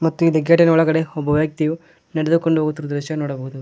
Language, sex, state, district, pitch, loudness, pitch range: Kannada, male, Karnataka, Koppal, 155 Hz, -18 LUFS, 150-165 Hz